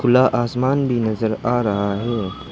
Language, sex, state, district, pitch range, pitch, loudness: Hindi, male, Arunachal Pradesh, Lower Dibang Valley, 105-125 Hz, 120 Hz, -20 LUFS